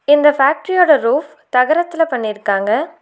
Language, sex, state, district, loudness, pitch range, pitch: Tamil, female, Tamil Nadu, Nilgiris, -15 LUFS, 250-325 Hz, 290 Hz